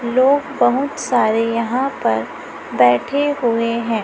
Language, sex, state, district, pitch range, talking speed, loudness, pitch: Hindi, female, Chhattisgarh, Raipur, 225-265 Hz, 120 wpm, -17 LUFS, 235 Hz